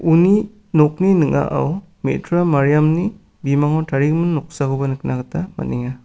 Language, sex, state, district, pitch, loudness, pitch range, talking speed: Garo, male, Meghalaya, South Garo Hills, 155 Hz, -18 LUFS, 140-175 Hz, 110 wpm